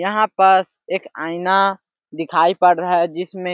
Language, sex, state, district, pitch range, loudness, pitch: Hindi, male, Chhattisgarh, Sarguja, 175-190 Hz, -17 LUFS, 180 Hz